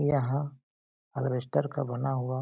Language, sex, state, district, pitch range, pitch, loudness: Hindi, male, Chhattisgarh, Balrampur, 130-145 Hz, 135 Hz, -31 LUFS